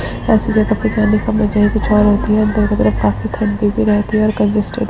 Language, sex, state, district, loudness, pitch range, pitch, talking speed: Hindi, female, Uttarakhand, Uttarkashi, -15 LUFS, 205-215 Hz, 210 Hz, 255 wpm